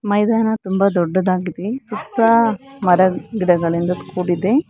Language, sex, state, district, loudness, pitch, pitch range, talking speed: Kannada, female, Karnataka, Bangalore, -18 LUFS, 195 Hz, 180-225 Hz, 90 wpm